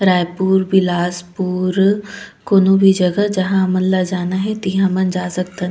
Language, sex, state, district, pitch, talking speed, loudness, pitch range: Chhattisgarhi, female, Chhattisgarh, Raigarh, 190 Hz, 155 wpm, -16 LUFS, 180-195 Hz